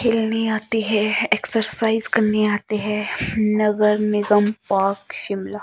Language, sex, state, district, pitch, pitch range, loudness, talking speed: Hindi, male, Himachal Pradesh, Shimla, 210 Hz, 210-220 Hz, -20 LUFS, 115 wpm